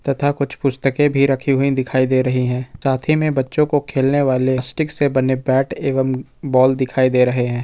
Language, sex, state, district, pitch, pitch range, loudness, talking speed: Hindi, male, Jharkhand, Ranchi, 135 Hz, 130-140 Hz, -17 LUFS, 210 wpm